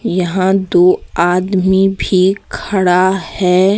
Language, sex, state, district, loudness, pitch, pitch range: Hindi, female, Jharkhand, Deoghar, -13 LUFS, 185 Hz, 180-190 Hz